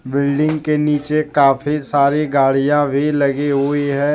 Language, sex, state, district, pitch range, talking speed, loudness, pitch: Hindi, male, Jharkhand, Deoghar, 140-150 Hz, 145 wpm, -16 LUFS, 145 Hz